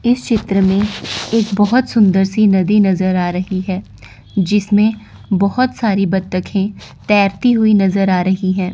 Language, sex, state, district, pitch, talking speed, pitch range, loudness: Hindi, female, Chandigarh, Chandigarh, 195 Hz, 150 wpm, 190-215 Hz, -15 LUFS